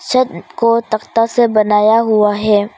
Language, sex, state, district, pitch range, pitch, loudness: Hindi, female, Arunachal Pradesh, Papum Pare, 210-230 Hz, 220 Hz, -13 LUFS